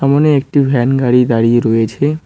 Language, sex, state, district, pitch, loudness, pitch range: Bengali, male, West Bengal, Cooch Behar, 130 Hz, -12 LUFS, 120-140 Hz